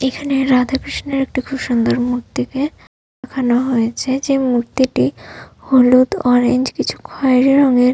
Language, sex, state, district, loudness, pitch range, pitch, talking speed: Bengali, female, West Bengal, Malda, -16 LUFS, 250-270 Hz, 260 Hz, 115 wpm